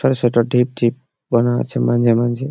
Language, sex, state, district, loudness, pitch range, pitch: Bengali, male, West Bengal, Malda, -17 LUFS, 120-125 Hz, 120 Hz